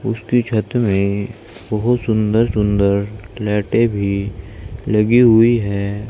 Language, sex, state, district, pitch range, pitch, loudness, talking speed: Hindi, male, Uttar Pradesh, Saharanpur, 100-115 Hz, 105 Hz, -17 LUFS, 110 wpm